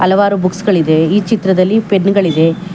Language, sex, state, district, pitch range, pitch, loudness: Kannada, female, Karnataka, Bangalore, 180-200 Hz, 190 Hz, -12 LUFS